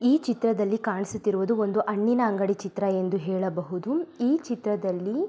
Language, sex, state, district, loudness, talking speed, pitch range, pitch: Kannada, female, Karnataka, Mysore, -26 LUFS, 125 wpm, 195-240 Hz, 210 Hz